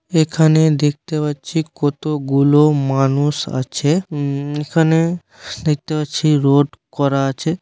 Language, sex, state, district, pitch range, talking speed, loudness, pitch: Bengali, male, West Bengal, Dakshin Dinajpur, 140-155 Hz, 110 wpm, -17 LUFS, 150 Hz